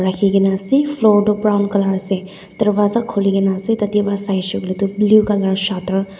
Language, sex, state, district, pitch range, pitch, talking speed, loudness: Nagamese, female, Nagaland, Dimapur, 195-210 Hz, 200 Hz, 205 wpm, -16 LUFS